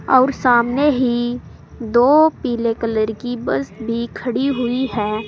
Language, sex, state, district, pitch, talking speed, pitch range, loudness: Hindi, female, Uttar Pradesh, Saharanpur, 240 Hz, 125 wpm, 230-255 Hz, -18 LUFS